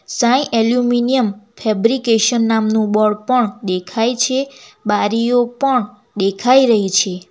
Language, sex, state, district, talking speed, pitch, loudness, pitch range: Gujarati, female, Gujarat, Valsad, 105 wpm, 230 Hz, -16 LUFS, 210-245 Hz